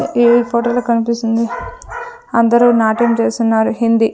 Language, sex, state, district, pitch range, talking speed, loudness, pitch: Telugu, female, Andhra Pradesh, Sri Satya Sai, 230-240 Hz, 115 wpm, -14 LUFS, 235 Hz